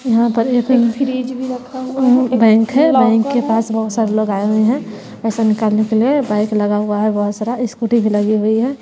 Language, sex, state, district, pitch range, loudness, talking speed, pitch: Hindi, female, Bihar, West Champaran, 215-255 Hz, -15 LUFS, 240 wpm, 230 Hz